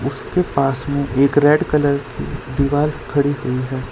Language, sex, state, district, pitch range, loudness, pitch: Hindi, male, Gujarat, Valsad, 135-145 Hz, -18 LUFS, 140 Hz